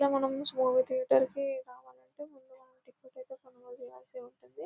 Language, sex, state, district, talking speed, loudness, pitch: Telugu, female, Telangana, Nalgonda, 140 wpm, -30 LUFS, 270 Hz